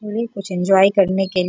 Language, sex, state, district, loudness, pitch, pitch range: Hindi, female, Bihar, Bhagalpur, -17 LUFS, 195 Hz, 185-200 Hz